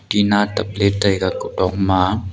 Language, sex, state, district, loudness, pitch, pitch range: Wancho, male, Arunachal Pradesh, Longding, -18 LUFS, 100 Hz, 95-105 Hz